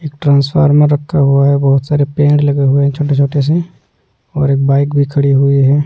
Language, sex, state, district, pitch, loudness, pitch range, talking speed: Hindi, male, Delhi, New Delhi, 140 Hz, -12 LUFS, 140-145 Hz, 205 wpm